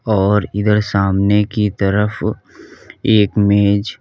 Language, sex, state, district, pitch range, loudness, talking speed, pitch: Hindi, male, Uttar Pradesh, Lalitpur, 100-105 Hz, -15 LUFS, 105 wpm, 105 Hz